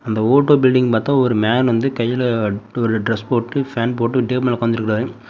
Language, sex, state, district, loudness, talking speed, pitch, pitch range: Tamil, male, Tamil Nadu, Namakkal, -17 LUFS, 190 wpm, 120 Hz, 115-125 Hz